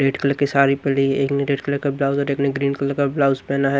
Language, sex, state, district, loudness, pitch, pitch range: Hindi, male, Odisha, Nuapada, -20 LUFS, 140 Hz, 135-140 Hz